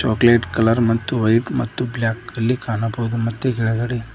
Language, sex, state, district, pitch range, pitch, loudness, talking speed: Kannada, male, Karnataka, Koppal, 115-120 Hz, 115 Hz, -19 LUFS, 145 wpm